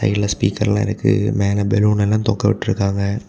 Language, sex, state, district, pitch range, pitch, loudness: Tamil, male, Tamil Nadu, Kanyakumari, 100-105 Hz, 105 Hz, -18 LUFS